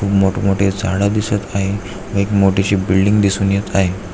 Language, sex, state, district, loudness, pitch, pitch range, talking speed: Marathi, male, Maharashtra, Aurangabad, -16 LUFS, 100 Hz, 95-100 Hz, 175 wpm